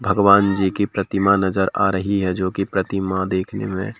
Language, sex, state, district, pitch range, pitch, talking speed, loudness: Hindi, male, Madhya Pradesh, Bhopal, 95-100 Hz, 95 Hz, 195 wpm, -19 LUFS